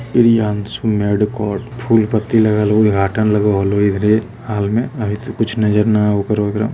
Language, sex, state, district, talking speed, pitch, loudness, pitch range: Hindi, male, Bihar, Lakhisarai, 180 wpm, 105 Hz, -16 LUFS, 105-110 Hz